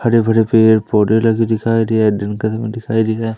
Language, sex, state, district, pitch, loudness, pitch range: Hindi, male, Madhya Pradesh, Umaria, 110 Hz, -15 LUFS, 110-115 Hz